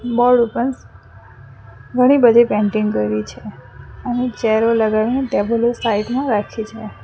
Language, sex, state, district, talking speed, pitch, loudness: Gujarati, female, Gujarat, Valsad, 130 wpm, 220 Hz, -17 LUFS